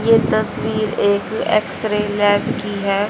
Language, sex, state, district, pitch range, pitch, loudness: Hindi, female, Haryana, Jhajjar, 205-220 Hz, 210 Hz, -18 LUFS